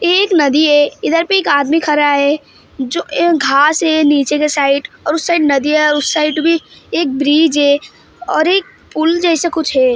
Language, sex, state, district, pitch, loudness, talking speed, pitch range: Hindi, female, Maharashtra, Mumbai Suburban, 305 Hz, -13 LUFS, 205 wpm, 285-330 Hz